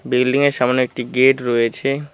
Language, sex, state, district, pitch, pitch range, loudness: Bengali, male, West Bengal, Cooch Behar, 130 Hz, 125-135 Hz, -17 LUFS